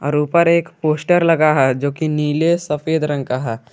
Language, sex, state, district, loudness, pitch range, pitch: Hindi, male, Jharkhand, Garhwa, -17 LUFS, 140-165 Hz, 150 Hz